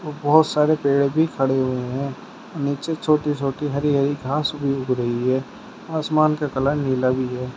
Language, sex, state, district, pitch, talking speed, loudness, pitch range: Hindi, male, Uttar Pradesh, Shamli, 145 Hz, 180 wpm, -21 LUFS, 130-155 Hz